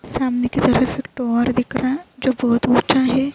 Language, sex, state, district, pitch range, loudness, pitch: Urdu, female, Uttar Pradesh, Budaun, 245-265 Hz, -19 LUFS, 255 Hz